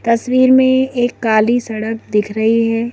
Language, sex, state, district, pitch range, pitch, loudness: Hindi, female, Madhya Pradesh, Bhopal, 220-250 Hz, 230 Hz, -14 LUFS